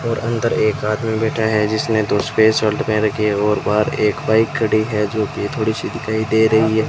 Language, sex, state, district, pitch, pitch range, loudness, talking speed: Hindi, male, Rajasthan, Bikaner, 110 Hz, 105-110 Hz, -17 LUFS, 235 wpm